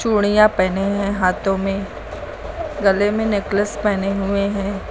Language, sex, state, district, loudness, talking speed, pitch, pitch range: Hindi, female, Uttar Pradesh, Lucknow, -19 LUFS, 135 wpm, 200 Hz, 195-210 Hz